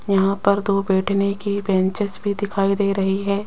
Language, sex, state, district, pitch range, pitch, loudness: Hindi, female, Rajasthan, Jaipur, 195-200 Hz, 200 Hz, -20 LUFS